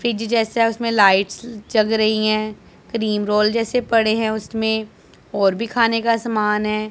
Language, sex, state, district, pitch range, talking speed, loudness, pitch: Hindi, female, Punjab, Pathankot, 215-230 Hz, 155 wpm, -19 LUFS, 220 Hz